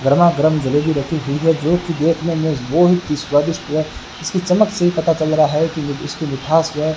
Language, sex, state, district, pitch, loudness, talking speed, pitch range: Hindi, male, Rajasthan, Bikaner, 155 Hz, -17 LUFS, 240 wpm, 150-165 Hz